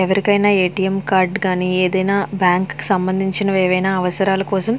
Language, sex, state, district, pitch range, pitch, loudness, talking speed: Telugu, female, Andhra Pradesh, Visakhapatnam, 185-195 Hz, 190 Hz, -17 LUFS, 165 wpm